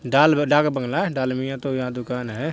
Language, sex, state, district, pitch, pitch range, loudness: Hindi, male, Bihar, Purnia, 135 Hz, 125-150 Hz, -22 LUFS